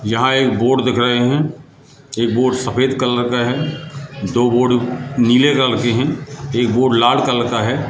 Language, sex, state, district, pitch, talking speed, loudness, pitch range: Hindi, male, Madhya Pradesh, Katni, 125 Hz, 180 wpm, -16 LUFS, 120-140 Hz